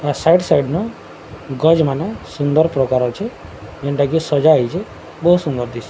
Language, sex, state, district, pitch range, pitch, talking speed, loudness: Odia, male, Odisha, Sambalpur, 135-165 Hz, 150 Hz, 150 wpm, -17 LUFS